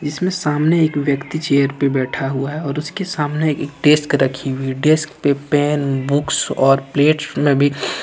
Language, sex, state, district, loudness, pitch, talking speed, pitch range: Hindi, male, Jharkhand, Ranchi, -17 LUFS, 145 Hz, 180 wpm, 140-155 Hz